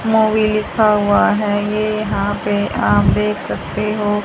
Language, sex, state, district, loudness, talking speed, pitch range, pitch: Hindi, female, Haryana, Jhajjar, -16 LUFS, 155 wpm, 205-215 Hz, 210 Hz